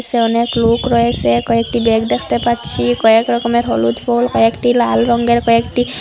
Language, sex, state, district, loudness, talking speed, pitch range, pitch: Bengali, female, Assam, Hailakandi, -14 LUFS, 150 wpm, 225-240 Hz, 235 Hz